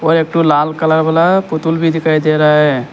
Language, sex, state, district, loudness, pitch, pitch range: Hindi, male, Arunachal Pradesh, Lower Dibang Valley, -12 LUFS, 160 Hz, 155-165 Hz